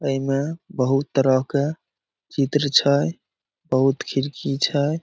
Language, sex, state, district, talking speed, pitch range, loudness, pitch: Maithili, male, Bihar, Samastipur, 120 wpm, 135-145 Hz, -21 LUFS, 140 Hz